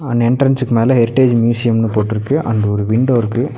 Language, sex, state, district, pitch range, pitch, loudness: Tamil, male, Tamil Nadu, Nilgiris, 115-130 Hz, 120 Hz, -14 LUFS